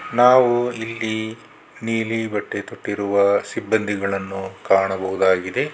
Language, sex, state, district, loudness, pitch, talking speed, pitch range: Kannada, male, Karnataka, Bangalore, -20 LUFS, 105 Hz, 75 wpm, 95-115 Hz